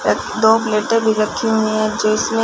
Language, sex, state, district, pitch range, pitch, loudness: Hindi, female, Punjab, Fazilka, 215-225 Hz, 220 Hz, -16 LUFS